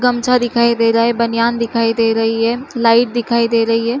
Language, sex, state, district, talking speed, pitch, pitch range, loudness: Chhattisgarhi, female, Chhattisgarh, Rajnandgaon, 225 wpm, 235 Hz, 230-240 Hz, -15 LUFS